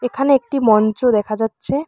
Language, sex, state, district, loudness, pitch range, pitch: Bengali, female, West Bengal, Alipurduar, -16 LUFS, 215-275 Hz, 240 Hz